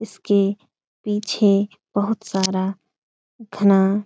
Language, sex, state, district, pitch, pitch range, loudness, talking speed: Hindi, female, Bihar, Supaul, 205 Hz, 195-210 Hz, -20 LUFS, 90 wpm